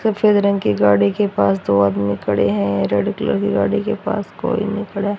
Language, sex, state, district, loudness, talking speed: Hindi, female, Haryana, Rohtak, -18 LUFS, 220 wpm